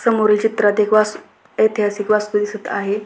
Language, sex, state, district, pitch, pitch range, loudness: Marathi, female, Maharashtra, Pune, 210 Hz, 210-215 Hz, -17 LUFS